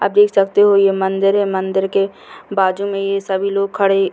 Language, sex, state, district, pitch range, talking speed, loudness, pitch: Hindi, female, Bihar, Purnia, 195-200 Hz, 235 wpm, -16 LUFS, 195 Hz